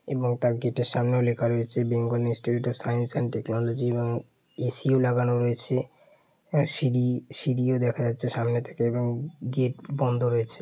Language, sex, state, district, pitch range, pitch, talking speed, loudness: Bengali, male, West Bengal, Purulia, 120-125 Hz, 120 Hz, 165 wpm, -26 LUFS